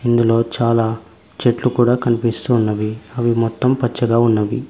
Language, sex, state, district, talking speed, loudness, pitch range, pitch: Telugu, male, Telangana, Mahabubabad, 130 wpm, -17 LUFS, 115-120 Hz, 115 Hz